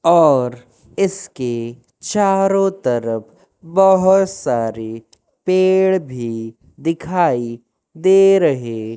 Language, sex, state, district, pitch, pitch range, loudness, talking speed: Hindi, male, Madhya Pradesh, Katni, 155 Hz, 115-190 Hz, -16 LUFS, 75 wpm